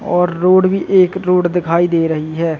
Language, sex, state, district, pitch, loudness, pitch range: Hindi, male, Chhattisgarh, Bilaspur, 180 Hz, -14 LUFS, 165-185 Hz